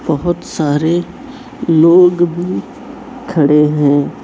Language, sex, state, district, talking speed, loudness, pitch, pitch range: Hindi, female, Chhattisgarh, Raipur, 85 wpm, -13 LUFS, 165 Hz, 150-175 Hz